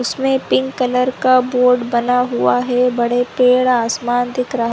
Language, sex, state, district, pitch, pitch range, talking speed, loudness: Hindi, female, Chhattisgarh, Korba, 250 Hz, 245-255 Hz, 175 wpm, -16 LUFS